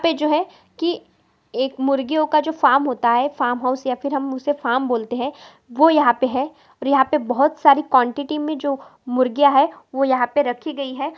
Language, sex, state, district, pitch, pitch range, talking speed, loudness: Hindi, female, Goa, North and South Goa, 275 Hz, 255-300 Hz, 210 wpm, -19 LUFS